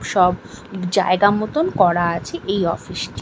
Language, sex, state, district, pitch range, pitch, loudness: Bengali, female, West Bengal, Malda, 175-200 Hz, 185 Hz, -19 LUFS